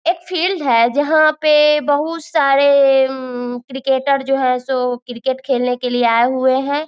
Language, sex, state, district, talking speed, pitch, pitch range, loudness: Hindi, female, Bihar, Muzaffarpur, 165 wpm, 270 Hz, 250-300 Hz, -16 LUFS